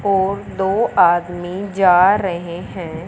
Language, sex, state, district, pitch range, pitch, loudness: Hindi, male, Punjab, Fazilka, 175-195 Hz, 185 Hz, -17 LUFS